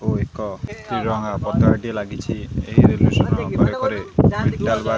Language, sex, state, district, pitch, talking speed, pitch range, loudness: Odia, male, Odisha, Khordha, 110 Hz, 110 wpm, 105-110 Hz, -20 LUFS